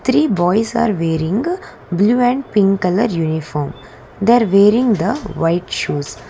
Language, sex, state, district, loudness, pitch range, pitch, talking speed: English, female, Karnataka, Bangalore, -16 LUFS, 170-235 Hz, 205 Hz, 145 wpm